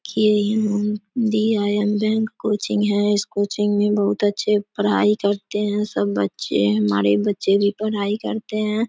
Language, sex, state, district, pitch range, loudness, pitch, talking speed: Hindi, female, Bihar, Samastipur, 205-210 Hz, -20 LUFS, 210 Hz, 155 wpm